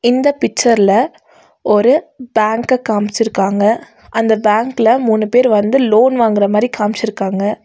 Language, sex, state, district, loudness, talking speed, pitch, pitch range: Tamil, female, Tamil Nadu, Nilgiris, -14 LUFS, 110 wpm, 225 Hz, 210-250 Hz